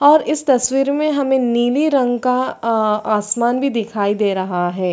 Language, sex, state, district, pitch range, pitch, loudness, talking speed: Hindi, female, Chhattisgarh, Sarguja, 210-270 Hz, 245 Hz, -17 LUFS, 185 wpm